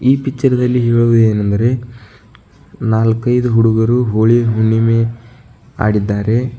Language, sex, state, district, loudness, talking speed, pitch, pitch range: Kannada, male, Karnataka, Bidar, -14 LUFS, 75 wpm, 115 Hz, 110-125 Hz